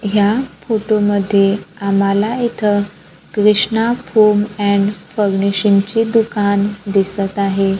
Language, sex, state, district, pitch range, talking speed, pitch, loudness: Marathi, female, Maharashtra, Gondia, 200-215 Hz, 100 wpm, 205 Hz, -15 LUFS